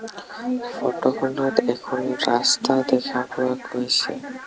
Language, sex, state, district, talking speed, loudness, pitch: Assamese, male, Assam, Sonitpur, 95 wpm, -22 LUFS, 135 Hz